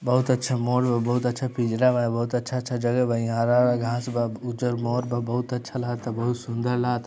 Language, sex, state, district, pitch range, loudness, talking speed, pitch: Bhojpuri, male, Bihar, East Champaran, 120-125 Hz, -25 LUFS, 220 wpm, 120 Hz